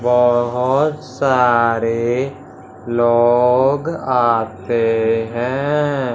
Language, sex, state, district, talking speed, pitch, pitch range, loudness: Hindi, male, Punjab, Fazilka, 50 wpm, 125 Hz, 120-135 Hz, -16 LUFS